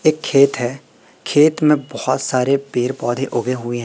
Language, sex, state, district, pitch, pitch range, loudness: Hindi, male, Madhya Pradesh, Katni, 135 Hz, 125-145 Hz, -17 LUFS